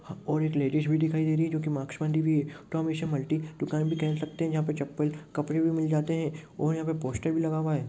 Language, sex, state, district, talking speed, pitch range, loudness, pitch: Hindi, male, Rajasthan, Churu, 290 wpm, 150-160 Hz, -29 LUFS, 155 Hz